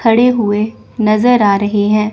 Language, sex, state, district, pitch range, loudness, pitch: Hindi, female, Chandigarh, Chandigarh, 210-230 Hz, -13 LUFS, 215 Hz